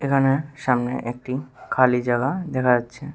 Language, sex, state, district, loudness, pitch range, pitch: Bengali, male, Tripura, West Tripura, -22 LUFS, 125-140 Hz, 130 Hz